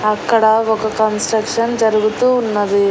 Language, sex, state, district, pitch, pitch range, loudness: Telugu, female, Andhra Pradesh, Annamaya, 220 Hz, 215-225 Hz, -15 LUFS